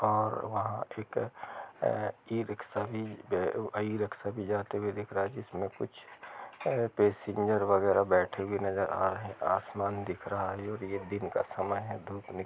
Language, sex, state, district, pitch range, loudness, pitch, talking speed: Hindi, male, Chhattisgarh, Rajnandgaon, 100-105 Hz, -33 LUFS, 100 Hz, 175 wpm